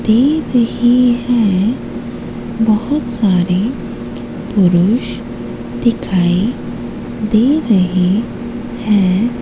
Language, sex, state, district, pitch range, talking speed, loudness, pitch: Hindi, female, Madhya Pradesh, Katni, 195-240 Hz, 65 wpm, -15 LUFS, 220 Hz